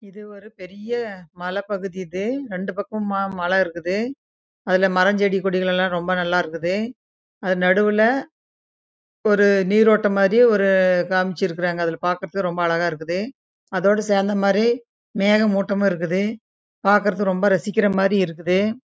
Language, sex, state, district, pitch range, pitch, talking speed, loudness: Tamil, female, Karnataka, Chamarajanagar, 185-210 Hz, 195 Hz, 120 wpm, -20 LUFS